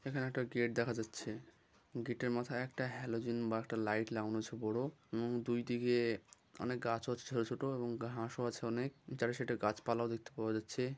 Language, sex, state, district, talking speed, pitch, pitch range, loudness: Bengali, male, West Bengal, Jhargram, 190 wpm, 120 Hz, 115-125 Hz, -39 LUFS